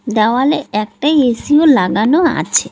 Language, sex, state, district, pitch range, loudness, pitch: Bengali, female, West Bengal, Cooch Behar, 220-300 Hz, -13 LUFS, 260 Hz